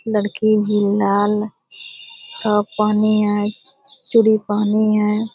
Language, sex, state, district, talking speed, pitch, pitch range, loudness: Hindi, female, Bihar, Purnia, 100 wpm, 210 Hz, 210-220 Hz, -17 LUFS